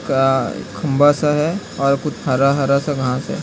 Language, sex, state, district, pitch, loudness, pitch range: Hindi, male, Bihar, Kishanganj, 140 Hz, -17 LUFS, 135-150 Hz